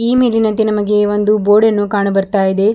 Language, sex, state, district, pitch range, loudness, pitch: Kannada, female, Karnataka, Bidar, 205-220 Hz, -13 LUFS, 210 Hz